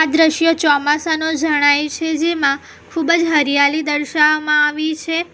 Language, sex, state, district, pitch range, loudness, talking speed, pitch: Gujarati, female, Gujarat, Valsad, 295-320 Hz, -15 LUFS, 125 wpm, 310 Hz